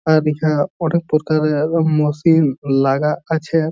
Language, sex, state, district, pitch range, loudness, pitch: Bengali, male, West Bengal, Jhargram, 150-160 Hz, -17 LUFS, 155 Hz